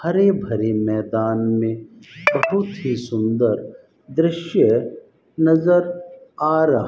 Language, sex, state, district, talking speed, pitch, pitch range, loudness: Hindi, male, Rajasthan, Bikaner, 105 wpm, 155 Hz, 110-175 Hz, -19 LUFS